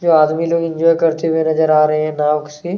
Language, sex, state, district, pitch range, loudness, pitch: Hindi, male, Chhattisgarh, Kabirdham, 155-165 Hz, -15 LUFS, 160 Hz